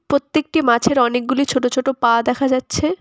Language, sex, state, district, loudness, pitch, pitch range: Bengali, female, West Bengal, Cooch Behar, -17 LUFS, 260 Hz, 245-280 Hz